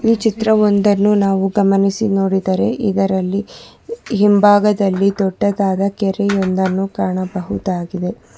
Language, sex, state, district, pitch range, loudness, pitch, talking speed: Kannada, female, Karnataka, Bangalore, 190-205 Hz, -16 LUFS, 195 Hz, 80 wpm